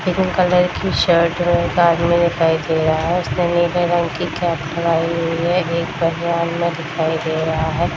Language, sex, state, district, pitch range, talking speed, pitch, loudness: Hindi, female, Bihar, Darbhanga, 165-175 Hz, 195 wpm, 170 Hz, -18 LUFS